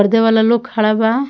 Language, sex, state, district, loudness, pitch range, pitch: Bhojpuri, female, Bihar, Muzaffarpur, -14 LUFS, 220-235 Hz, 225 Hz